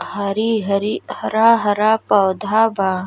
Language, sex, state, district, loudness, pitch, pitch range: Bhojpuri, female, Uttar Pradesh, Gorakhpur, -17 LUFS, 210 Hz, 200-220 Hz